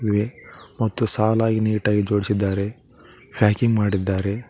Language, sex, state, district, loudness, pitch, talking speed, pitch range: Kannada, male, Karnataka, Koppal, -21 LUFS, 105 Hz, 80 wpm, 105-115 Hz